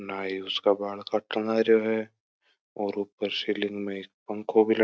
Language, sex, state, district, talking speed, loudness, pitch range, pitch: Marwari, male, Rajasthan, Churu, 175 wpm, -28 LUFS, 100-110 Hz, 105 Hz